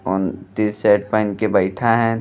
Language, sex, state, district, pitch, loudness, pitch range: Bhojpuri, male, Uttar Pradesh, Deoria, 105 Hz, -19 LUFS, 95-110 Hz